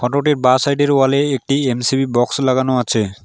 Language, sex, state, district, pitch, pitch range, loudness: Bengali, male, West Bengal, Alipurduar, 135 Hz, 125-140 Hz, -16 LUFS